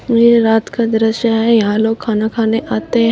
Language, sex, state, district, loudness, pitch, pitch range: Hindi, female, Uttar Pradesh, Shamli, -14 LUFS, 225 Hz, 220-230 Hz